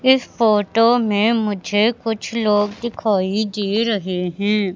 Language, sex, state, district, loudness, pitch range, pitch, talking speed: Hindi, female, Madhya Pradesh, Katni, -18 LUFS, 205-230 Hz, 210 Hz, 125 wpm